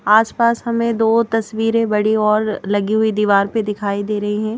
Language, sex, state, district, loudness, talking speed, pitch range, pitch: Hindi, female, Madhya Pradesh, Bhopal, -17 LUFS, 185 wpm, 210-225 Hz, 215 Hz